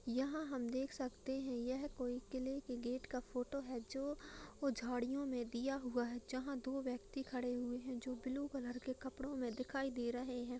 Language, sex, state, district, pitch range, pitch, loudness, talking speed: Hindi, female, Bihar, Gaya, 245-270 Hz, 255 Hz, -44 LUFS, 200 wpm